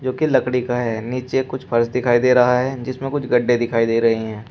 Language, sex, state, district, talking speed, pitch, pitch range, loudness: Hindi, male, Uttar Pradesh, Shamli, 240 wpm, 125 Hz, 115-130 Hz, -19 LUFS